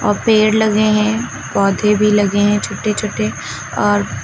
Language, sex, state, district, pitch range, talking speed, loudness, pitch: Hindi, female, Uttar Pradesh, Lucknow, 130-215 Hz, 155 wpm, -15 LUFS, 205 Hz